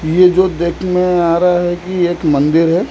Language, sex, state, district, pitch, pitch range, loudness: Hindi, male, Odisha, Khordha, 175 Hz, 170-180 Hz, -13 LUFS